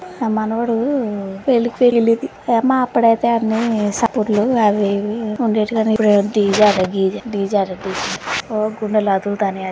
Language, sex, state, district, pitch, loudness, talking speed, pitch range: Telugu, female, Telangana, Karimnagar, 220 Hz, -17 LUFS, 150 wpm, 205-230 Hz